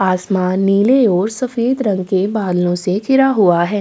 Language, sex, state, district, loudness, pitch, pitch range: Hindi, female, Uttar Pradesh, Jalaun, -15 LUFS, 195 Hz, 185-230 Hz